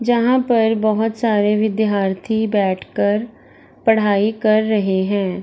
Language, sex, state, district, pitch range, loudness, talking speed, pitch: Hindi, female, Bihar, Darbhanga, 205-225 Hz, -17 LUFS, 120 wpm, 215 Hz